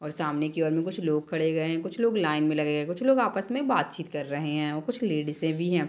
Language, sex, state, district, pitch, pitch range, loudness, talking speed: Hindi, female, Chhattisgarh, Bilaspur, 160 Hz, 150-185 Hz, -27 LUFS, 305 wpm